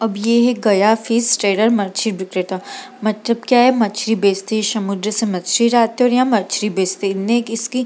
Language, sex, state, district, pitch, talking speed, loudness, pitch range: Hindi, female, Bihar, Gaya, 220 Hz, 200 wpm, -17 LUFS, 200-235 Hz